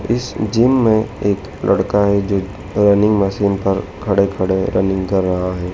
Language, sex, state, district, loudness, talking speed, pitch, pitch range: Hindi, male, Madhya Pradesh, Dhar, -16 LUFS, 165 wpm, 100 Hz, 95-105 Hz